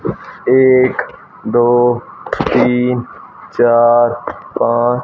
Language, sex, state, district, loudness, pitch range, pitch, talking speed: Hindi, male, Haryana, Rohtak, -13 LUFS, 120-125 Hz, 120 Hz, 60 wpm